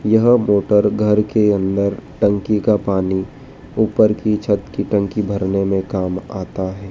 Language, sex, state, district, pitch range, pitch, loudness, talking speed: Hindi, male, Madhya Pradesh, Dhar, 100-105 Hz, 100 Hz, -17 LUFS, 155 wpm